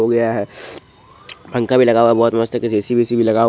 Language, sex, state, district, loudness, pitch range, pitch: Hindi, male, Bihar, Supaul, -16 LUFS, 115-120 Hz, 115 Hz